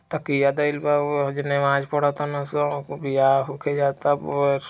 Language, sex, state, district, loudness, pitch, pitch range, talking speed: Hindi, male, Uttar Pradesh, Deoria, -23 LUFS, 145 Hz, 140-145 Hz, 190 wpm